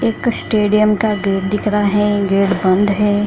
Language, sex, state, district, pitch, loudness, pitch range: Hindi, female, Bihar, Kishanganj, 205 Hz, -15 LUFS, 195-210 Hz